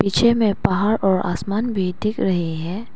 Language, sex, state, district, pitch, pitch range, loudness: Hindi, female, Arunachal Pradesh, Lower Dibang Valley, 195 Hz, 185-220 Hz, -20 LUFS